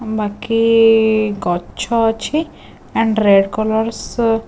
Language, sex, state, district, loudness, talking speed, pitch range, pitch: Odia, female, Odisha, Khordha, -16 LUFS, 120 wpm, 215-225 Hz, 225 Hz